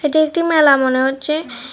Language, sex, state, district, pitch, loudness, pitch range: Bengali, female, Tripura, West Tripura, 300 Hz, -15 LUFS, 270-315 Hz